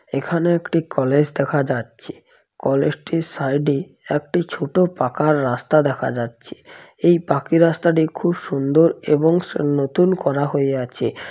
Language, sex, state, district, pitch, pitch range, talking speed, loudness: Bengali, male, West Bengal, Paschim Medinipur, 150 Hz, 140-170 Hz, 120 wpm, -19 LUFS